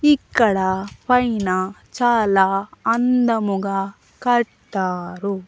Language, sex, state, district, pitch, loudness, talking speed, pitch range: Telugu, female, Andhra Pradesh, Annamaya, 200 Hz, -20 LUFS, 55 wpm, 190-240 Hz